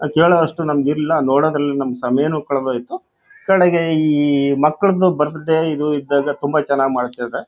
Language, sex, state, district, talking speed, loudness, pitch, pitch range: Kannada, male, Karnataka, Shimoga, 130 wpm, -17 LUFS, 150 Hz, 140-160 Hz